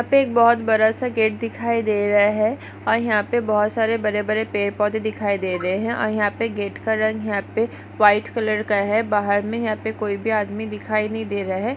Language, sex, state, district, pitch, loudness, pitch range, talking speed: Hindi, female, Maharashtra, Aurangabad, 215 Hz, -21 LUFS, 205-225 Hz, 240 wpm